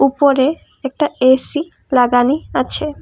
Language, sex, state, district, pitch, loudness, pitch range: Bengali, female, Assam, Kamrup Metropolitan, 275 Hz, -16 LUFS, 260-300 Hz